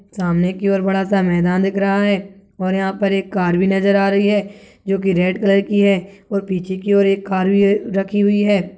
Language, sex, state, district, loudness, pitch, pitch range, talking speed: Hindi, male, Chhattisgarh, Balrampur, -17 LUFS, 195 Hz, 190-200 Hz, 230 wpm